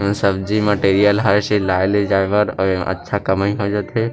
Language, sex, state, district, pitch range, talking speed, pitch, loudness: Chhattisgarhi, male, Chhattisgarh, Rajnandgaon, 95-105 Hz, 205 wpm, 100 Hz, -17 LUFS